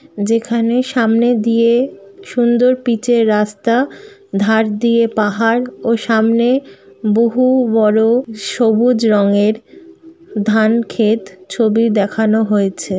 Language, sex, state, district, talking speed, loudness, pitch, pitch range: Bengali, female, West Bengal, Kolkata, 95 wpm, -14 LUFS, 230 Hz, 215-240 Hz